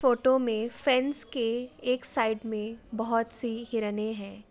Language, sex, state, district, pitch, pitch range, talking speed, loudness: Hindi, female, Uttar Pradesh, Jalaun, 230 Hz, 220-250 Hz, 145 wpm, -28 LUFS